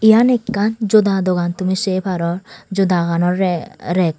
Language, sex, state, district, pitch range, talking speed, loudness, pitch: Chakma, female, Tripura, Dhalai, 175-210 Hz, 130 wpm, -17 LUFS, 190 Hz